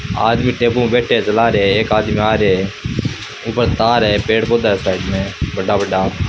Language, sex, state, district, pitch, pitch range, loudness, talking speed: Rajasthani, male, Rajasthan, Churu, 105 Hz, 95-115 Hz, -15 LUFS, 210 wpm